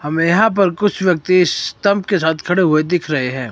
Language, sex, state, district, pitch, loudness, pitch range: Hindi, male, Himachal Pradesh, Shimla, 180 Hz, -15 LUFS, 155-195 Hz